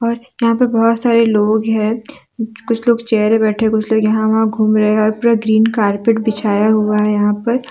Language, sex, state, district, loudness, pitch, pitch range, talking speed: Hindi, female, Jharkhand, Deoghar, -14 LUFS, 220 Hz, 215-230 Hz, 195 wpm